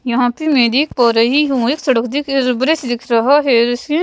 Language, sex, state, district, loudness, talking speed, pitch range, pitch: Hindi, female, Bihar, West Champaran, -14 LUFS, 210 wpm, 240-290 Hz, 255 Hz